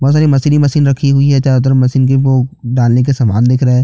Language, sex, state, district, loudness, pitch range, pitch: Hindi, male, Chhattisgarh, Jashpur, -11 LUFS, 125-140 Hz, 135 Hz